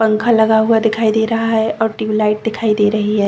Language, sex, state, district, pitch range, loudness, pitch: Hindi, female, Chhattisgarh, Bastar, 215-225 Hz, -15 LUFS, 220 Hz